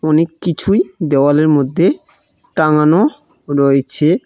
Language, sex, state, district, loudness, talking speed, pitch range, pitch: Bengali, male, West Bengal, Cooch Behar, -14 LUFS, 85 wpm, 145-170 Hz, 155 Hz